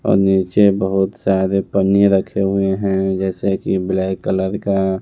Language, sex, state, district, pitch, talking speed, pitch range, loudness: Hindi, male, Bihar, West Champaran, 95 Hz, 145 wpm, 95-100 Hz, -17 LUFS